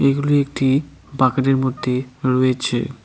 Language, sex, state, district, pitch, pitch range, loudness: Bengali, male, West Bengal, Cooch Behar, 130 Hz, 130-135 Hz, -19 LUFS